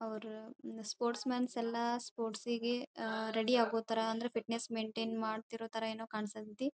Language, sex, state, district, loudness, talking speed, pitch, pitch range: Kannada, female, Karnataka, Dharwad, -38 LUFS, 160 wpm, 225 Hz, 220-235 Hz